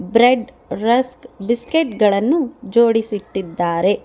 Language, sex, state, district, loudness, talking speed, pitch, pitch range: Kannada, female, Karnataka, Bangalore, -17 LUFS, 75 wpm, 235 Hz, 205-250 Hz